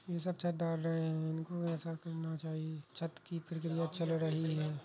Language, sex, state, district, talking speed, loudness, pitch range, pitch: Hindi, male, Uttar Pradesh, Ghazipur, 200 wpm, -38 LUFS, 160-165 Hz, 165 Hz